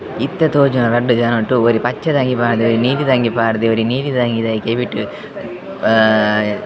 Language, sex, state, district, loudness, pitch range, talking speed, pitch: Tulu, male, Karnataka, Dakshina Kannada, -15 LUFS, 115-125 Hz, 160 wpm, 120 Hz